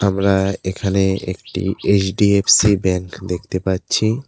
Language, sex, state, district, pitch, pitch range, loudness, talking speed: Bengali, male, West Bengal, Cooch Behar, 95 Hz, 95-100 Hz, -18 LUFS, 100 wpm